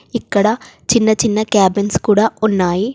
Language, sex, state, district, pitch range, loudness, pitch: Telugu, female, Telangana, Komaram Bheem, 200-220 Hz, -15 LUFS, 215 Hz